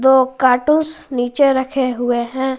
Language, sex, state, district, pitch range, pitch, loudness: Hindi, female, Jharkhand, Garhwa, 250-270 Hz, 260 Hz, -16 LUFS